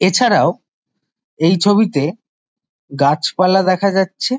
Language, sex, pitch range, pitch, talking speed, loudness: Bengali, male, 160-205 Hz, 185 Hz, 80 wpm, -15 LUFS